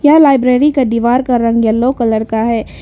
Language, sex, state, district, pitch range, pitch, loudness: Hindi, female, Arunachal Pradesh, Lower Dibang Valley, 230-265 Hz, 240 Hz, -12 LUFS